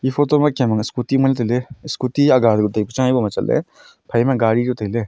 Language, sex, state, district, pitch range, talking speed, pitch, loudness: Wancho, male, Arunachal Pradesh, Longding, 115-135 Hz, 165 wpm, 125 Hz, -18 LUFS